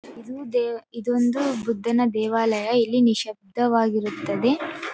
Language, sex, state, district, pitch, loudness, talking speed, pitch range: Kannada, female, Karnataka, Bellary, 235 Hz, -23 LUFS, 95 wpm, 225-245 Hz